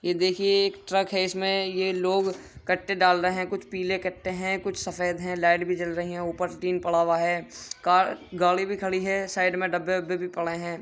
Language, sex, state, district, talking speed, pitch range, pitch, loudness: Hindi, male, Uttar Pradesh, Jyotiba Phule Nagar, 235 wpm, 175-190 Hz, 185 Hz, -26 LUFS